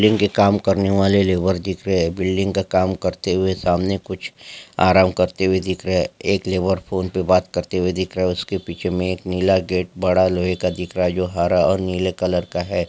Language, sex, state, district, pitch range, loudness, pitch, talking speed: Marwari, male, Rajasthan, Nagaur, 90-95 Hz, -19 LUFS, 95 Hz, 235 wpm